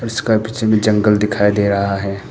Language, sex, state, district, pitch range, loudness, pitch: Hindi, male, Arunachal Pradesh, Papum Pare, 100-110 Hz, -16 LUFS, 105 Hz